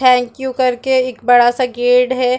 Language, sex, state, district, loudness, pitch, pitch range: Hindi, female, Chhattisgarh, Bastar, -14 LUFS, 250 Hz, 245-255 Hz